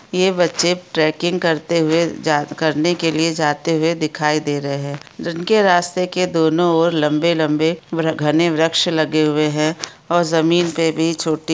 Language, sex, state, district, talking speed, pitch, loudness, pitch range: Hindi, female, Chhattisgarh, Jashpur, 160 wpm, 160 Hz, -17 LUFS, 155-170 Hz